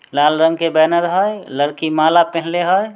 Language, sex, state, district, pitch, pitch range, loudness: Maithili, male, Bihar, Samastipur, 165 Hz, 155-175 Hz, -15 LUFS